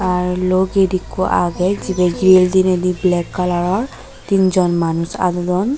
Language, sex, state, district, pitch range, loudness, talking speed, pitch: Chakma, female, Tripura, Dhalai, 180-190 Hz, -16 LUFS, 155 wpm, 185 Hz